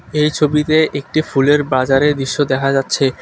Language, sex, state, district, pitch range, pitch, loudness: Bengali, male, West Bengal, Alipurduar, 135-150 Hz, 145 Hz, -15 LUFS